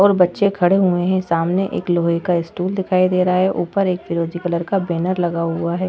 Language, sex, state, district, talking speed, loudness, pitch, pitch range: Hindi, female, Uttar Pradesh, Etah, 235 wpm, -18 LUFS, 180 Hz, 170-185 Hz